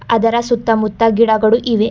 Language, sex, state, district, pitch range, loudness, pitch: Kannada, female, Karnataka, Bidar, 220-230 Hz, -14 LUFS, 225 Hz